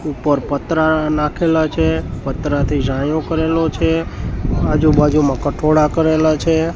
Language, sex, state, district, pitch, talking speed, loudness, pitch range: Gujarati, male, Gujarat, Gandhinagar, 150 Hz, 105 wpm, -16 LUFS, 140-160 Hz